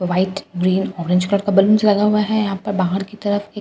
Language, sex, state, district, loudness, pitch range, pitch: Hindi, female, Bihar, Katihar, -18 LUFS, 185-210 Hz, 195 Hz